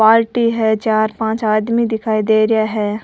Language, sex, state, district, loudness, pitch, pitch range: Rajasthani, female, Rajasthan, Churu, -16 LUFS, 220 Hz, 215-225 Hz